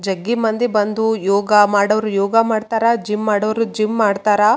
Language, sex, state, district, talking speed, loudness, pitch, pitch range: Kannada, female, Karnataka, Raichur, 105 wpm, -16 LUFS, 215 Hz, 205-225 Hz